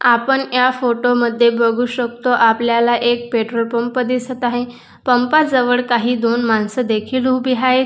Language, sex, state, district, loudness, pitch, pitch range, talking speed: Marathi, female, Maharashtra, Dhule, -16 LUFS, 245 Hz, 235-255 Hz, 150 wpm